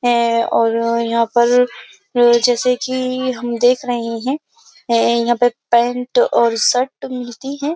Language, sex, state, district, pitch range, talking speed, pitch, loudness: Hindi, female, Uttar Pradesh, Jyotiba Phule Nagar, 235-255 Hz, 130 wpm, 245 Hz, -16 LUFS